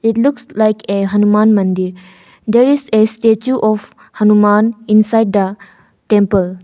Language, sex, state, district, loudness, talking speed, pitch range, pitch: English, female, Arunachal Pradesh, Longding, -13 LUFS, 135 wpm, 200-225 Hz, 215 Hz